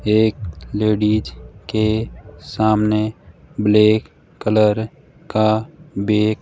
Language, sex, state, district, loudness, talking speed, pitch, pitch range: Hindi, male, Rajasthan, Jaipur, -18 LUFS, 85 wpm, 110 Hz, 105-110 Hz